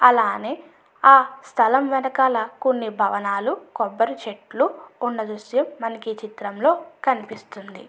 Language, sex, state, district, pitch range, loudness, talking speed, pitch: Telugu, female, Andhra Pradesh, Anantapur, 220-270 Hz, -21 LUFS, 105 wpm, 245 Hz